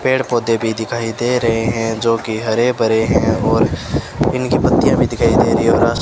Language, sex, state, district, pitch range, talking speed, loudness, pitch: Hindi, male, Rajasthan, Bikaner, 115-120 Hz, 220 wpm, -16 LUFS, 115 Hz